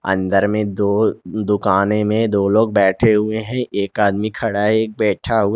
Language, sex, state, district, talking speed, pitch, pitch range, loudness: Hindi, male, Jharkhand, Garhwa, 185 wpm, 105 Hz, 100-110 Hz, -17 LUFS